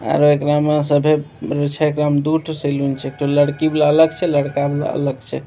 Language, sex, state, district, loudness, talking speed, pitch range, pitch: Maithili, male, Bihar, Begusarai, -17 LUFS, 230 wpm, 145-150 Hz, 145 Hz